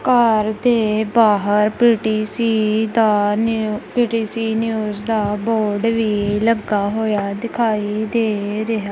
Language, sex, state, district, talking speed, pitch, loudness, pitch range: Punjabi, female, Punjab, Kapurthala, 115 wpm, 220 Hz, -18 LUFS, 210-225 Hz